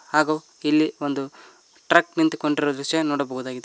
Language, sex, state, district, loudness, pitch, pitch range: Kannada, male, Karnataka, Koppal, -22 LUFS, 150 Hz, 140-155 Hz